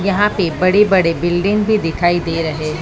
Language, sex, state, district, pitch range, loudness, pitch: Hindi, female, Maharashtra, Mumbai Suburban, 165-200 Hz, -15 LUFS, 175 Hz